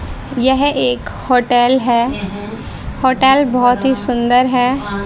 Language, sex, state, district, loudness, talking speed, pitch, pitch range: Hindi, female, Haryana, Charkhi Dadri, -14 LUFS, 105 wpm, 250 Hz, 235-260 Hz